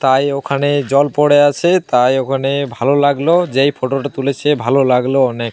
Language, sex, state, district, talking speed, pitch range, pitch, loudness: Bengali, male, Jharkhand, Jamtara, 175 wpm, 135-145 Hz, 140 Hz, -14 LUFS